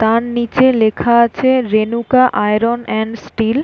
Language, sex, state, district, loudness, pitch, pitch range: Bengali, female, West Bengal, North 24 Parganas, -14 LUFS, 235 Hz, 220-240 Hz